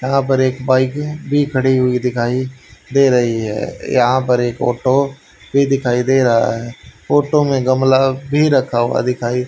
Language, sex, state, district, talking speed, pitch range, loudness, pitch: Hindi, male, Haryana, Charkhi Dadri, 165 wpm, 120-135 Hz, -16 LUFS, 130 Hz